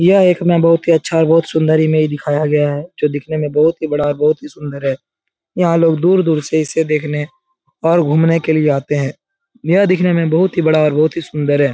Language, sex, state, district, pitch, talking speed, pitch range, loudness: Hindi, male, Bihar, Jahanabad, 155 Hz, 235 wpm, 150-170 Hz, -14 LUFS